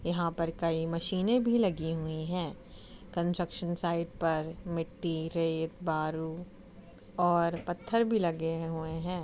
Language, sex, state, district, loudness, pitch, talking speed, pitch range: Hindi, female, Uttar Pradesh, Muzaffarnagar, -32 LUFS, 170 Hz, 135 wpm, 165-175 Hz